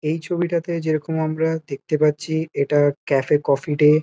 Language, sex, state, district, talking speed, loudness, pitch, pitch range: Bengali, male, West Bengal, Kolkata, 165 wpm, -21 LUFS, 155 Hz, 150-160 Hz